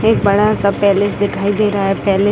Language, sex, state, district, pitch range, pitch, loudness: Hindi, female, Bihar, Gopalganj, 200-205 Hz, 200 Hz, -14 LUFS